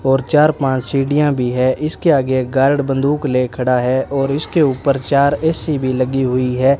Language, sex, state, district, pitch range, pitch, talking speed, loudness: Hindi, male, Rajasthan, Bikaner, 130-145 Hz, 135 Hz, 205 wpm, -16 LUFS